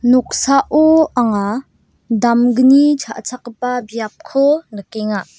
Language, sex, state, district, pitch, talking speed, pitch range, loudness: Garo, female, Meghalaya, West Garo Hills, 245 Hz, 65 wpm, 225-275 Hz, -15 LUFS